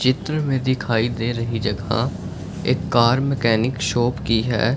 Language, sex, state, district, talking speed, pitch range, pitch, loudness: Hindi, male, Punjab, Fazilka, 150 wpm, 115-130 Hz, 120 Hz, -21 LUFS